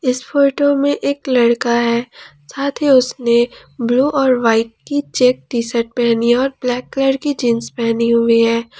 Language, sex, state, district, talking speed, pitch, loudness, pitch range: Hindi, female, Jharkhand, Palamu, 175 wpm, 250 Hz, -16 LUFS, 235-275 Hz